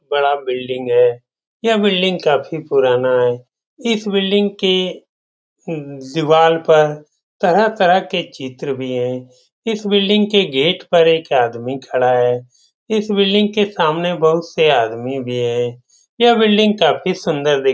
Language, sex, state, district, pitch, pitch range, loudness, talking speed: Hindi, male, Bihar, Saran, 160 Hz, 125-195 Hz, -16 LUFS, 145 wpm